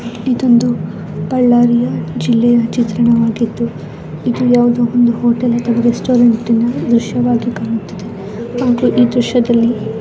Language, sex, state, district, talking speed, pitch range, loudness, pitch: Kannada, female, Karnataka, Bellary, 90 wpm, 230-240 Hz, -14 LUFS, 235 Hz